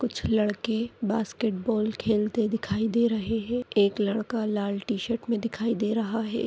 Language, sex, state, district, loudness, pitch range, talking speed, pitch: Hindi, female, Maharashtra, Nagpur, -27 LUFS, 210-230 Hz, 155 wpm, 220 Hz